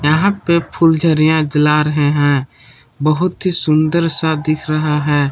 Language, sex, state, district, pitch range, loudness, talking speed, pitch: Hindi, male, Jharkhand, Palamu, 150-165 Hz, -14 LUFS, 145 wpm, 155 Hz